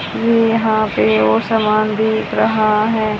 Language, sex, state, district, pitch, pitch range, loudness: Hindi, female, Haryana, Charkhi Dadri, 215 Hz, 215-225 Hz, -15 LUFS